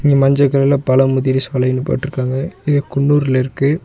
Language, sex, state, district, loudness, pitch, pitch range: Tamil, male, Tamil Nadu, Nilgiris, -15 LUFS, 135 Hz, 130-140 Hz